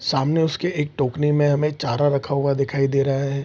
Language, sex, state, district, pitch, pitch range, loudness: Hindi, male, Bihar, Araria, 140 Hz, 140-150 Hz, -21 LUFS